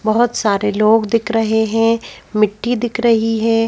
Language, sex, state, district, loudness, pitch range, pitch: Hindi, female, Madhya Pradesh, Bhopal, -16 LUFS, 215-230 Hz, 225 Hz